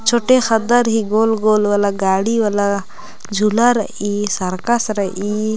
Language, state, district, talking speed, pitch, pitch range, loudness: Kurukh, Chhattisgarh, Jashpur, 130 wpm, 215 Hz, 200-225 Hz, -16 LUFS